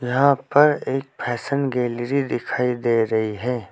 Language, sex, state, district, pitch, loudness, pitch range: Hindi, male, Uttar Pradesh, Saharanpur, 125 Hz, -21 LUFS, 120-135 Hz